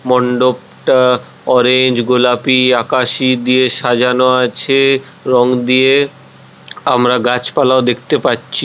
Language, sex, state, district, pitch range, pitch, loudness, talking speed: Bengali, male, West Bengal, Purulia, 125-130 Hz, 125 Hz, -12 LUFS, 90 wpm